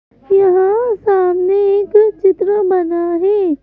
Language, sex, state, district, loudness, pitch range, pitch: Hindi, female, Madhya Pradesh, Bhopal, -13 LUFS, 370-405 Hz, 390 Hz